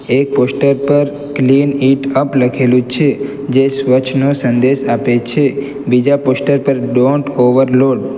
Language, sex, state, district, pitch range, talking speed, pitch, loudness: Gujarati, male, Gujarat, Valsad, 130-140 Hz, 145 wpm, 135 Hz, -13 LUFS